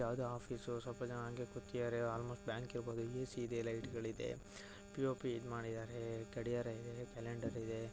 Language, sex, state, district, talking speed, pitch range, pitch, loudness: Kannada, male, Karnataka, Mysore, 160 wpm, 115-120 Hz, 120 Hz, -45 LUFS